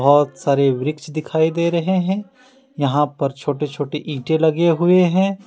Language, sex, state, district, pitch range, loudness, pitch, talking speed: Hindi, male, Jharkhand, Deoghar, 145-180 Hz, -19 LUFS, 160 Hz, 165 wpm